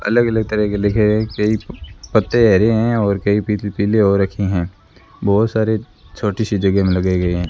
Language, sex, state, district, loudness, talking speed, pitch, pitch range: Hindi, female, Rajasthan, Bikaner, -17 LUFS, 210 wpm, 105 Hz, 95-110 Hz